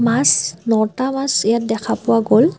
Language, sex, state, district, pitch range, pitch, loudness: Assamese, female, Assam, Kamrup Metropolitan, 155-235 Hz, 220 Hz, -17 LUFS